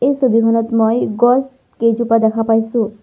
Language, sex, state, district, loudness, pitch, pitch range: Assamese, female, Assam, Sonitpur, -15 LUFS, 230 Hz, 225-245 Hz